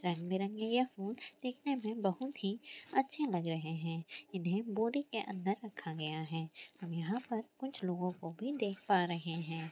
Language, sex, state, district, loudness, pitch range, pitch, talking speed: Hindi, female, Andhra Pradesh, Visakhapatnam, -38 LUFS, 170-235 Hz, 195 Hz, 180 wpm